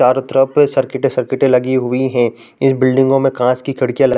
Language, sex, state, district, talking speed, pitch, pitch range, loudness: Hindi, male, Chhattisgarh, Raigarh, 230 wpm, 130 Hz, 125-135 Hz, -15 LUFS